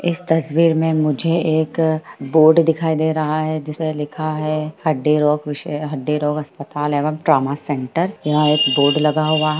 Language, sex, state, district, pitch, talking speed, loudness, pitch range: Hindi, female, Bihar, Jahanabad, 155 Hz, 175 wpm, -18 LUFS, 150-160 Hz